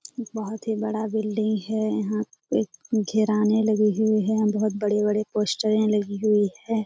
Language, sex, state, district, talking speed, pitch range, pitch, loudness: Hindi, female, Bihar, Jamui, 140 wpm, 210-220 Hz, 215 Hz, -24 LUFS